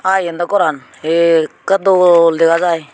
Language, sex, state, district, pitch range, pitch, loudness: Chakma, female, Tripura, Unakoti, 165-180 Hz, 170 Hz, -13 LUFS